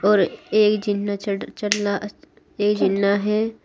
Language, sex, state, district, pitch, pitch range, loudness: Hindi, female, Uttar Pradesh, Saharanpur, 205 Hz, 200-210 Hz, -21 LUFS